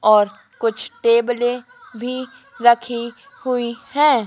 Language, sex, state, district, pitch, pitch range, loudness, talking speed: Hindi, female, Madhya Pradesh, Dhar, 240 Hz, 235-255 Hz, -20 LUFS, 100 wpm